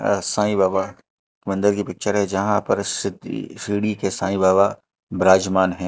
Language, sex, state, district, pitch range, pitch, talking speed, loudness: Hindi, male, Madhya Pradesh, Katni, 95-105 Hz, 95 Hz, 155 wpm, -20 LUFS